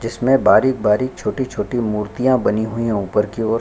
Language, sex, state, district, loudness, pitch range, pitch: Hindi, male, Chhattisgarh, Sukma, -18 LUFS, 105-130 Hz, 115 Hz